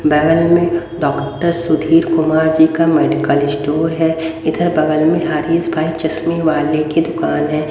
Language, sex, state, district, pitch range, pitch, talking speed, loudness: Hindi, female, Haryana, Rohtak, 155-165 Hz, 160 Hz, 155 wpm, -15 LUFS